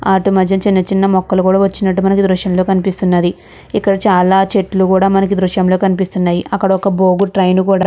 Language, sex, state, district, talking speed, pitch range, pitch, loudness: Telugu, female, Andhra Pradesh, Guntur, 205 wpm, 185-195 Hz, 190 Hz, -13 LUFS